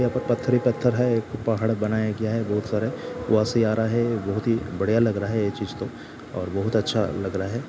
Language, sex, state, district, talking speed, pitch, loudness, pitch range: Hindi, male, Bihar, Saran, 240 wpm, 110 Hz, -24 LUFS, 105-115 Hz